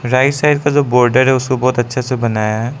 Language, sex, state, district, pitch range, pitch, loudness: Hindi, male, Arunachal Pradesh, Lower Dibang Valley, 120-135 Hz, 130 Hz, -14 LUFS